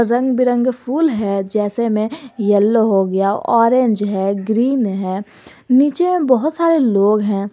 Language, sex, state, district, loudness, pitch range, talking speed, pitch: Hindi, male, Jharkhand, Garhwa, -16 LUFS, 205-255 Hz, 145 wpm, 225 Hz